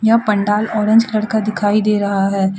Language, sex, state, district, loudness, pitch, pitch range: Hindi, female, Jharkhand, Deoghar, -15 LUFS, 210 Hz, 205-220 Hz